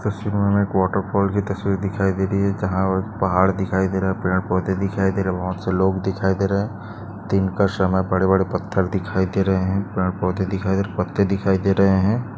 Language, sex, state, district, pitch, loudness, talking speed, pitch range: Hindi, male, Maharashtra, Chandrapur, 95 Hz, -21 LUFS, 250 wpm, 95-100 Hz